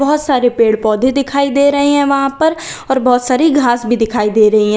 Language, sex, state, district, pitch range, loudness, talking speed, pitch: Hindi, female, Uttar Pradesh, Lalitpur, 230-285 Hz, -12 LUFS, 240 wpm, 260 Hz